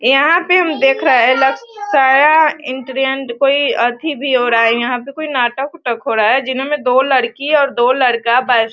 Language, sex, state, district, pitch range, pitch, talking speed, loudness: Hindi, female, Bihar, Sitamarhi, 245-285 Hz, 270 Hz, 200 wpm, -13 LUFS